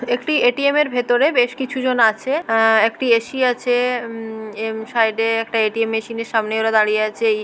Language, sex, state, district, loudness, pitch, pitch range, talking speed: Bengali, female, West Bengal, Kolkata, -18 LUFS, 230 Hz, 220-250 Hz, 200 wpm